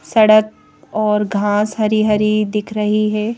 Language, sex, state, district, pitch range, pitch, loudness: Hindi, female, Madhya Pradesh, Bhopal, 210-215 Hz, 215 Hz, -16 LUFS